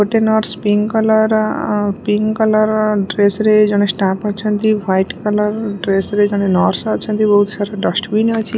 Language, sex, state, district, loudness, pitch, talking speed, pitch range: Odia, female, Odisha, Malkangiri, -15 LUFS, 210 Hz, 190 wpm, 205-215 Hz